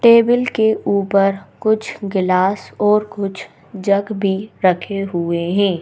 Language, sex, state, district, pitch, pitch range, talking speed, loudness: Hindi, female, Madhya Pradesh, Bhopal, 200 Hz, 190-215 Hz, 125 wpm, -17 LUFS